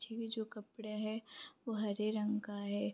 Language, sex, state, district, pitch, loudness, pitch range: Hindi, female, Bihar, Vaishali, 215 Hz, -40 LUFS, 210-225 Hz